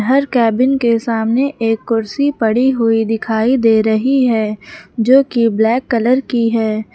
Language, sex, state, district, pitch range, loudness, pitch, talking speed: Hindi, female, Uttar Pradesh, Lucknow, 225-255 Hz, -14 LUFS, 230 Hz, 155 wpm